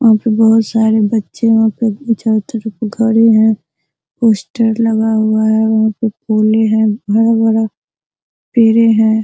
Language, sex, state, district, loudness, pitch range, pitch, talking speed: Hindi, female, Bihar, Araria, -13 LUFS, 220-225 Hz, 220 Hz, 115 wpm